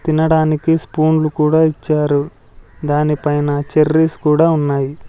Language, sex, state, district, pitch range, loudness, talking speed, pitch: Telugu, male, Andhra Pradesh, Sri Satya Sai, 145-160 Hz, -15 LUFS, 105 wpm, 150 Hz